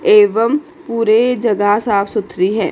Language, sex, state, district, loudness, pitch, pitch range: Hindi, female, Chandigarh, Chandigarh, -15 LUFS, 230 Hz, 210-290 Hz